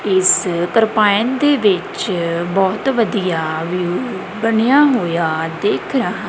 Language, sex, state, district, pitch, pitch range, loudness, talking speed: Punjabi, female, Punjab, Kapurthala, 190 Hz, 175-225 Hz, -16 LUFS, 105 wpm